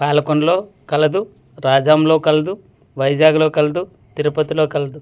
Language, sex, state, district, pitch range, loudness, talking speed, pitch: Telugu, male, Andhra Pradesh, Manyam, 150-160 Hz, -16 LUFS, 130 wpm, 155 Hz